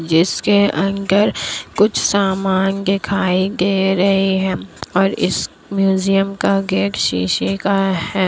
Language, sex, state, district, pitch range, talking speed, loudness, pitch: Hindi, female, Bihar, Kishanganj, 190-195 Hz, 115 wpm, -17 LUFS, 195 Hz